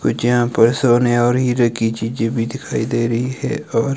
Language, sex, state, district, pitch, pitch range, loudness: Hindi, male, Himachal Pradesh, Shimla, 120 Hz, 115-125 Hz, -17 LUFS